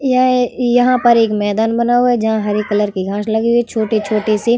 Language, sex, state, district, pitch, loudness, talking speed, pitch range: Hindi, female, Uttar Pradesh, Varanasi, 225 Hz, -15 LUFS, 235 wpm, 215-245 Hz